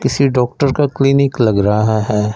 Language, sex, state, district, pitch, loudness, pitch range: Hindi, male, Punjab, Fazilka, 125 Hz, -14 LUFS, 110-140 Hz